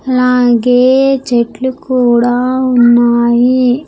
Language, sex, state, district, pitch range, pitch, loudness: Telugu, female, Andhra Pradesh, Sri Satya Sai, 240-255 Hz, 250 Hz, -10 LUFS